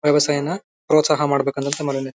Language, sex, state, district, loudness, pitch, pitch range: Kannada, male, Karnataka, Bellary, -20 LUFS, 145 Hz, 140-150 Hz